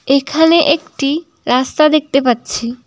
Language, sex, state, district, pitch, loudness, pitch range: Bengali, female, West Bengal, Cooch Behar, 280 Hz, -14 LUFS, 255-310 Hz